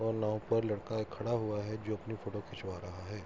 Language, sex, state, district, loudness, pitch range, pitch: Hindi, male, Uttar Pradesh, Hamirpur, -37 LUFS, 105-110 Hz, 110 Hz